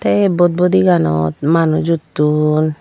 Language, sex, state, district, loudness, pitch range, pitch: Chakma, female, Tripura, Dhalai, -14 LUFS, 150-175 Hz, 160 Hz